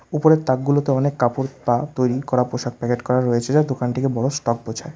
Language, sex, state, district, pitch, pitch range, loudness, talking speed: Bengali, male, West Bengal, Alipurduar, 130 Hz, 120-140 Hz, -20 LUFS, 195 wpm